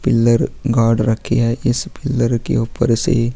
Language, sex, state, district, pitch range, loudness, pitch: Hindi, male, Chhattisgarh, Sukma, 115-125 Hz, -17 LUFS, 120 Hz